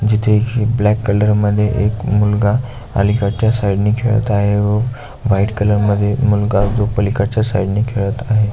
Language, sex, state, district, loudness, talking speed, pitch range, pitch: Marathi, male, Maharashtra, Aurangabad, -16 LUFS, 155 wpm, 105-110 Hz, 105 Hz